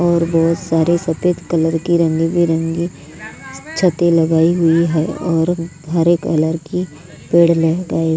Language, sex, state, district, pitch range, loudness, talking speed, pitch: Hindi, female, Maharashtra, Gondia, 160-170 Hz, -16 LUFS, 140 wpm, 165 Hz